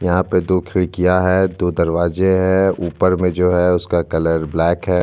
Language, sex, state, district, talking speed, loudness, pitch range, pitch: Hindi, male, Chhattisgarh, Bastar, 190 wpm, -17 LUFS, 85-95 Hz, 90 Hz